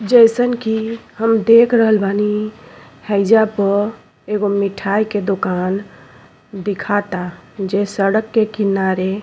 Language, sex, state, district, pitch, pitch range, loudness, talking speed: Bhojpuri, female, Uttar Pradesh, Ghazipur, 205 Hz, 195-220 Hz, -16 LUFS, 115 wpm